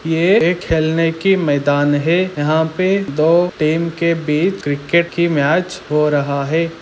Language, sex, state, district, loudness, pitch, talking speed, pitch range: Hindi, male, Chhattisgarh, Raigarh, -16 LUFS, 165 Hz, 165 wpm, 150-170 Hz